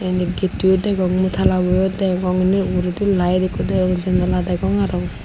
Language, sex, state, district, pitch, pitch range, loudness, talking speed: Chakma, female, Tripura, Unakoti, 185 Hz, 180-190 Hz, -18 LUFS, 160 wpm